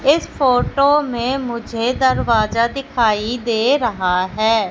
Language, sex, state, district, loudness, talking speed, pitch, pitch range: Hindi, female, Madhya Pradesh, Katni, -17 LUFS, 115 wpm, 235 Hz, 220-265 Hz